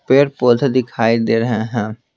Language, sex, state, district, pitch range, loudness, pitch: Hindi, male, Bihar, Patna, 115-130 Hz, -16 LUFS, 120 Hz